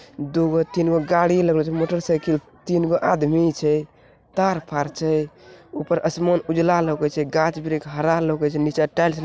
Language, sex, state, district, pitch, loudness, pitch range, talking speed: Angika, male, Bihar, Bhagalpur, 160 Hz, -21 LUFS, 150-170 Hz, 190 wpm